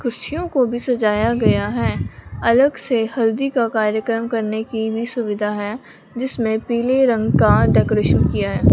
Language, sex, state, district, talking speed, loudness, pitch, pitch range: Hindi, male, Punjab, Fazilka, 160 wpm, -18 LUFS, 235 Hz, 220-250 Hz